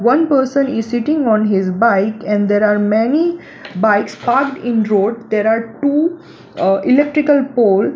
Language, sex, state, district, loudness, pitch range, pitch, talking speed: English, female, Gujarat, Valsad, -15 LUFS, 210-280 Hz, 230 Hz, 165 wpm